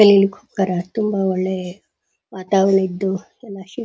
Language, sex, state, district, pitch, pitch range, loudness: Kannada, female, Karnataka, Dharwad, 195 Hz, 190-200 Hz, -19 LUFS